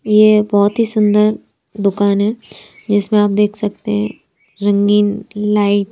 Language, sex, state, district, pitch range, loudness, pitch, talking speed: Hindi, female, Bihar, Katihar, 205-215 Hz, -15 LUFS, 210 Hz, 140 wpm